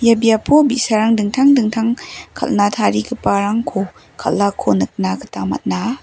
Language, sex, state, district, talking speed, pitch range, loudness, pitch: Garo, female, Meghalaya, West Garo Hills, 110 wpm, 195-240 Hz, -16 LUFS, 215 Hz